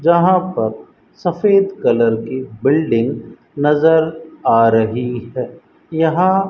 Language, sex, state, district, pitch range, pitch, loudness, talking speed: Hindi, male, Rajasthan, Bikaner, 120-170 Hz, 150 Hz, -16 LUFS, 110 wpm